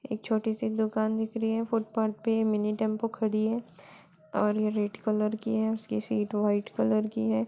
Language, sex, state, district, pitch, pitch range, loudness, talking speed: Hindi, female, Bihar, Saran, 215 Hz, 205-220 Hz, -29 LUFS, 200 wpm